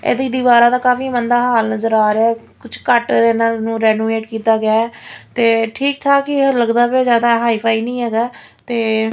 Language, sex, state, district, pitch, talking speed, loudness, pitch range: Punjabi, female, Punjab, Fazilka, 230 Hz, 195 wpm, -15 LUFS, 225-245 Hz